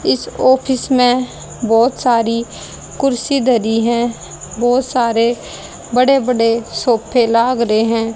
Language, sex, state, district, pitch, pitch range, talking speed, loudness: Hindi, female, Haryana, Charkhi Dadri, 240 Hz, 230-255 Hz, 120 wpm, -15 LUFS